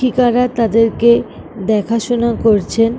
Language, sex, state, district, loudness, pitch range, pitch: Bengali, female, West Bengal, Kolkata, -14 LUFS, 225-240 Hz, 230 Hz